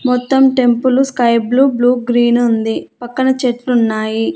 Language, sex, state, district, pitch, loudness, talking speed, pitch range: Telugu, female, Andhra Pradesh, Annamaya, 245 Hz, -13 LUFS, 125 wpm, 235-260 Hz